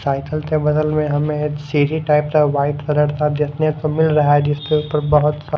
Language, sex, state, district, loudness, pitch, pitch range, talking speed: Hindi, male, Odisha, Khordha, -17 LUFS, 150 Hz, 145-155 Hz, 215 wpm